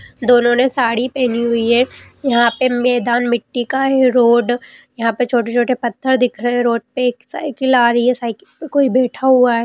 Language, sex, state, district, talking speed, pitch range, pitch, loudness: Hindi, female, Bihar, Purnia, 205 wpm, 235-255 Hz, 245 Hz, -16 LUFS